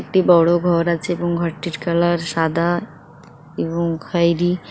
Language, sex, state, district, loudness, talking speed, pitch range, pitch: Bengali, female, West Bengal, Paschim Medinipur, -19 LUFS, 125 wpm, 165-175 Hz, 170 Hz